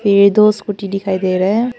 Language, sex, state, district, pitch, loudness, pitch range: Hindi, female, Arunachal Pradesh, Papum Pare, 200 Hz, -14 LUFS, 195-210 Hz